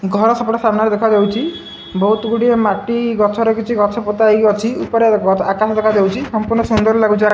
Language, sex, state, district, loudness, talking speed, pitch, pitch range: Odia, male, Odisha, Malkangiri, -15 LUFS, 180 wpm, 220 Hz, 210-230 Hz